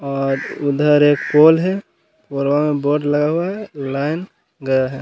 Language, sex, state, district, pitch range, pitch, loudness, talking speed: Hindi, male, Bihar, Gaya, 140-155 Hz, 145 Hz, -17 LUFS, 165 wpm